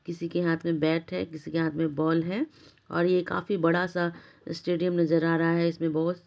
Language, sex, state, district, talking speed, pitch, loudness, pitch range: Maithili, male, Bihar, Supaul, 240 wpm, 170 Hz, -27 LUFS, 165-175 Hz